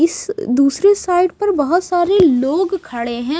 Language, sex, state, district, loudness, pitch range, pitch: Hindi, female, Maharashtra, Mumbai Suburban, -16 LUFS, 275-380 Hz, 350 Hz